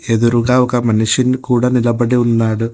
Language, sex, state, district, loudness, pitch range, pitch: Telugu, male, Telangana, Hyderabad, -14 LUFS, 115-125 Hz, 120 Hz